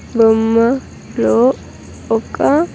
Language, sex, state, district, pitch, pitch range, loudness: Telugu, female, Andhra Pradesh, Sri Satya Sai, 230 Hz, 225-260 Hz, -15 LUFS